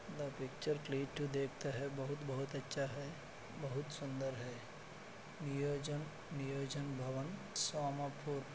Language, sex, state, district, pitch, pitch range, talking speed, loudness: Hindi, male, Maharashtra, Solapur, 140 Hz, 135-145 Hz, 100 wpm, -43 LUFS